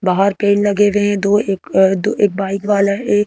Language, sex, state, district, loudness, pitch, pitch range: Hindi, female, Madhya Pradesh, Bhopal, -15 LUFS, 200 Hz, 195-205 Hz